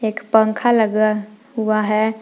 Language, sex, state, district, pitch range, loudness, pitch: Hindi, female, Jharkhand, Palamu, 215-220 Hz, -17 LUFS, 215 Hz